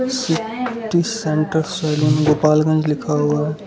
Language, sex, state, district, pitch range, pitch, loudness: Hindi, male, Gujarat, Valsad, 150-205 Hz, 155 Hz, -18 LUFS